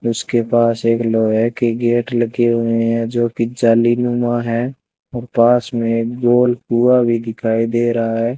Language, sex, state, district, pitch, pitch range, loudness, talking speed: Hindi, male, Rajasthan, Bikaner, 120 Hz, 115-120 Hz, -16 LUFS, 170 wpm